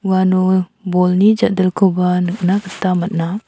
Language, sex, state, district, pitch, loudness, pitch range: Garo, female, Meghalaya, South Garo Hills, 185 Hz, -15 LUFS, 180-195 Hz